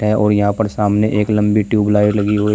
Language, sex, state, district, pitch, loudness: Hindi, male, Uttar Pradesh, Shamli, 105 Hz, -15 LUFS